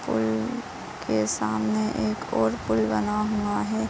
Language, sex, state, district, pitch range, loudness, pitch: Hindi, female, Uttar Pradesh, Jalaun, 105-110 Hz, -26 LUFS, 110 Hz